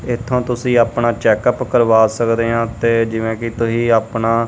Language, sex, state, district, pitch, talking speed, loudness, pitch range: Punjabi, male, Punjab, Kapurthala, 115 Hz, 175 wpm, -16 LUFS, 115-120 Hz